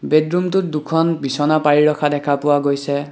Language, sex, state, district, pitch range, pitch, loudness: Assamese, male, Assam, Kamrup Metropolitan, 145-155 Hz, 150 Hz, -17 LUFS